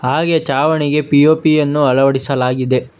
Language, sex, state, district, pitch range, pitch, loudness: Kannada, male, Karnataka, Bangalore, 130-155 Hz, 145 Hz, -14 LUFS